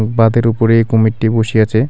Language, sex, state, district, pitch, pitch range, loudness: Bengali, male, West Bengal, Alipurduar, 115 Hz, 110-115 Hz, -13 LUFS